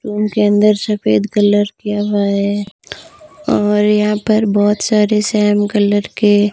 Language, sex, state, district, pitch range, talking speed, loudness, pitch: Hindi, female, Rajasthan, Barmer, 205-210 Hz, 145 wpm, -14 LUFS, 210 Hz